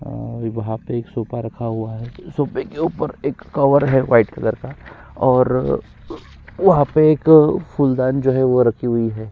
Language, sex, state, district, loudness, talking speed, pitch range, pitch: Hindi, female, Chhattisgarh, Sukma, -18 LUFS, 180 wpm, 115-140 Hz, 125 Hz